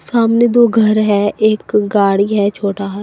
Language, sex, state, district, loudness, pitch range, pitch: Hindi, female, Assam, Sonitpur, -13 LUFS, 200-220 Hz, 210 Hz